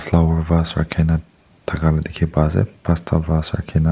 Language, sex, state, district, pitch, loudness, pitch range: Nagamese, male, Nagaland, Dimapur, 80 Hz, -19 LUFS, 80-85 Hz